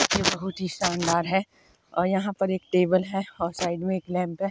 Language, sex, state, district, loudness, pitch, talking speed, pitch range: Hindi, male, Himachal Pradesh, Shimla, -26 LUFS, 185 Hz, 225 wpm, 180-190 Hz